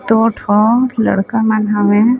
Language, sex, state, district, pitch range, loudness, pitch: Chhattisgarhi, female, Chhattisgarh, Sarguja, 210-230 Hz, -13 LUFS, 220 Hz